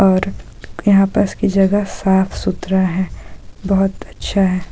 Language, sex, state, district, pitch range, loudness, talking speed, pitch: Hindi, female, Jharkhand, Sahebganj, 185-195 Hz, -17 LUFS, 125 wpm, 190 Hz